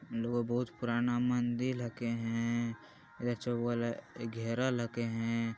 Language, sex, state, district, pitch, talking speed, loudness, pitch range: Magahi, male, Bihar, Jamui, 120 Hz, 130 wpm, -35 LUFS, 115-120 Hz